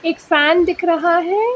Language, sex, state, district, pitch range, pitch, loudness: Hindi, female, Karnataka, Bangalore, 330-355 Hz, 340 Hz, -15 LUFS